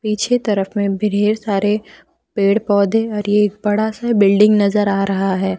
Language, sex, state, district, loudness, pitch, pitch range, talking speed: Hindi, female, Jharkhand, Deoghar, -16 LUFS, 210 Hz, 200-215 Hz, 170 wpm